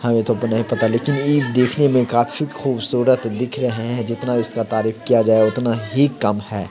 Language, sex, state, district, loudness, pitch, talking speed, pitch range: Hindi, male, Bihar, Samastipur, -18 LUFS, 120 Hz, 195 wpm, 115-130 Hz